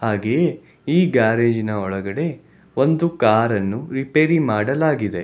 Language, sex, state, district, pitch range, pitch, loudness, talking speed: Kannada, male, Karnataka, Bangalore, 105-155 Hz, 120 Hz, -19 LUFS, 105 wpm